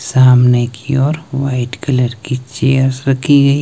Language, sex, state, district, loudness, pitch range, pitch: Hindi, male, Himachal Pradesh, Shimla, -14 LUFS, 125-140 Hz, 130 Hz